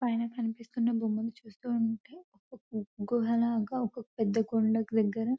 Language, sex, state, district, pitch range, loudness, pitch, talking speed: Telugu, female, Telangana, Nalgonda, 220-240 Hz, -32 LUFS, 230 Hz, 135 wpm